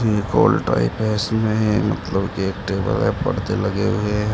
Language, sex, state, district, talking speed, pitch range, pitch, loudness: Hindi, male, Uttar Pradesh, Shamli, 195 wpm, 95-110 Hz, 105 Hz, -20 LUFS